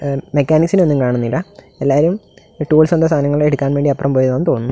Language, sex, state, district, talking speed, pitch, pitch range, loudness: Malayalam, male, Kerala, Kasaragod, 140 wpm, 145 Hz, 140-160 Hz, -15 LUFS